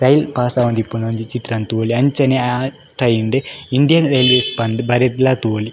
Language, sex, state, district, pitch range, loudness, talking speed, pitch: Tulu, male, Karnataka, Dakshina Kannada, 115-130 Hz, -16 LUFS, 155 wpm, 125 Hz